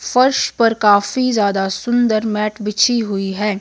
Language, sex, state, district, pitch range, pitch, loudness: Hindi, female, Himachal Pradesh, Shimla, 205-240 Hz, 210 Hz, -16 LUFS